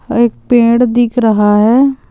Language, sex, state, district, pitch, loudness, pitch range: Hindi, female, Andhra Pradesh, Chittoor, 235 Hz, -10 LUFS, 225-245 Hz